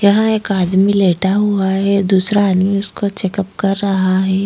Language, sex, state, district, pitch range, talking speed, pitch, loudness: Hindi, female, Uttarakhand, Tehri Garhwal, 190-200 Hz, 175 wpm, 195 Hz, -15 LUFS